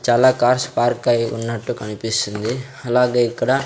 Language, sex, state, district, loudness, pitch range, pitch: Telugu, male, Andhra Pradesh, Sri Satya Sai, -19 LUFS, 115-125 Hz, 120 Hz